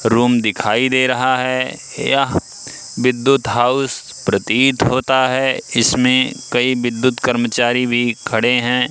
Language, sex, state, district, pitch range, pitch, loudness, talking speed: Hindi, male, Madhya Pradesh, Katni, 120-130 Hz, 125 Hz, -16 LUFS, 120 wpm